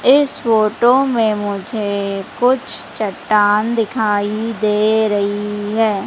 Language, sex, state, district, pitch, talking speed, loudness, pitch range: Hindi, female, Madhya Pradesh, Umaria, 215 Hz, 100 wpm, -16 LUFS, 205-230 Hz